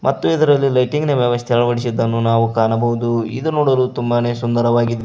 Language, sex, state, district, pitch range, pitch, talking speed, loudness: Kannada, male, Karnataka, Koppal, 115-130 Hz, 120 Hz, 145 wpm, -17 LUFS